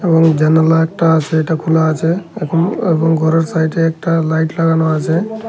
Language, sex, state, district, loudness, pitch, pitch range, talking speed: Bengali, male, Tripura, Unakoti, -14 LUFS, 160 Hz, 160-165 Hz, 165 wpm